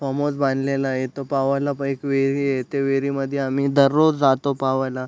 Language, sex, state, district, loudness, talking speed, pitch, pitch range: Marathi, male, Maharashtra, Aurangabad, -21 LUFS, 190 wpm, 135 Hz, 135-140 Hz